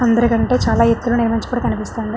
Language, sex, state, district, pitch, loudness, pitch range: Telugu, female, Andhra Pradesh, Srikakulam, 230 Hz, -17 LUFS, 230-240 Hz